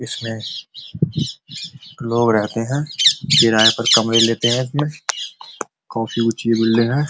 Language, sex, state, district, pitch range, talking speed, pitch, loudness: Hindi, male, Uttar Pradesh, Muzaffarnagar, 115-150 Hz, 120 wpm, 120 Hz, -17 LUFS